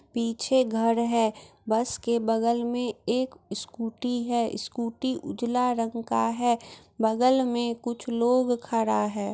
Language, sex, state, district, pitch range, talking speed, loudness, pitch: Maithili, female, Bihar, Muzaffarpur, 225-245 Hz, 135 wpm, -27 LUFS, 235 Hz